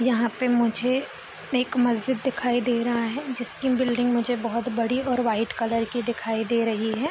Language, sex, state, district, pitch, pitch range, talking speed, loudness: Hindi, female, Bihar, East Champaran, 240 Hz, 230-250 Hz, 185 wpm, -25 LUFS